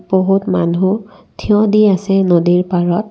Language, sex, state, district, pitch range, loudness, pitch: Assamese, female, Assam, Kamrup Metropolitan, 180-205 Hz, -14 LUFS, 190 Hz